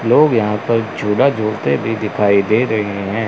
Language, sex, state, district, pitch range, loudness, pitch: Hindi, male, Chandigarh, Chandigarh, 105-115 Hz, -16 LUFS, 110 Hz